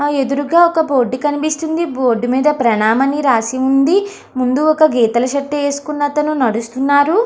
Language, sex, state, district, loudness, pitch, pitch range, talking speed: Telugu, female, Andhra Pradesh, Anantapur, -15 LUFS, 280 Hz, 255-305 Hz, 150 wpm